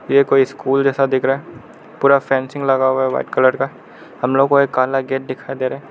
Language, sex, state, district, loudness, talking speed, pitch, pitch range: Hindi, male, Arunachal Pradesh, Lower Dibang Valley, -17 LUFS, 245 wpm, 135 Hz, 130-135 Hz